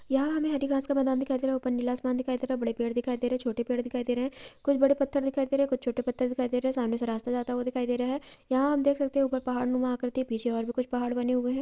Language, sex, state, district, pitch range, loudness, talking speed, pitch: Maithili, female, Bihar, Purnia, 245-270 Hz, -29 LUFS, 345 wpm, 255 Hz